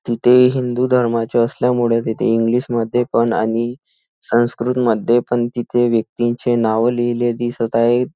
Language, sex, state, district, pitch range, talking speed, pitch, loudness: Marathi, male, Maharashtra, Nagpur, 115-120 Hz, 125 wpm, 120 Hz, -17 LUFS